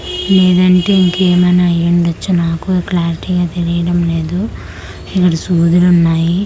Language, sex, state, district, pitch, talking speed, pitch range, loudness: Telugu, female, Andhra Pradesh, Manyam, 175 Hz, 120 wpm, 170-180 Hz, -13 LUFS